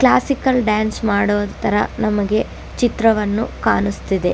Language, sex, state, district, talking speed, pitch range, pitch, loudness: Kannada, female, Karnataka, Dakshina Kannada, 85 wpm, 205-230 Hz, 215 Hz, -18 LUFS